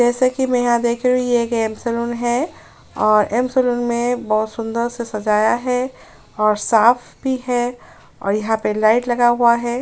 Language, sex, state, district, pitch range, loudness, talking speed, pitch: Hindi, female, Uttar Pradesh, Jyotiba Phule Nagar, 220-245 Hz, -18 LUFS, 170 wpm, 240 Hz